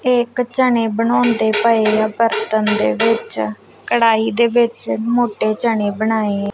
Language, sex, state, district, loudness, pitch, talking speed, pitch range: Punjabi, female, Punjab, Kapurthala, -16 LUFS, 225 Hz, 145 wpm, 215-235 Hz